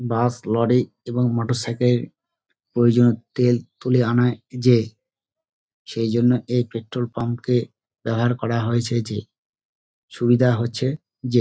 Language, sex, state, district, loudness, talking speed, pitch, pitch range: Bengali, male, West Bengal, Dakshin Dinajpur, -21 LUFS, 115 wpm, 120 Hz, 115-125 Hz